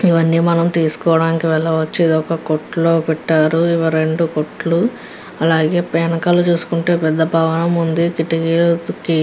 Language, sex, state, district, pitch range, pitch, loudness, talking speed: Telugu, female, Andhra Pradesh, Guntur, 160-170 Hz, 165 Hz, -16 LUFS, 70 wpm